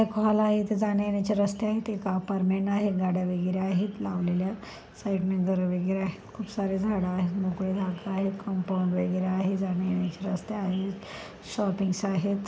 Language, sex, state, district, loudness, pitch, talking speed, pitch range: Marathi, female, Maharashtra, Pune, -28 LUFS, 195 Hz, 180 wpm, 185-205 Hz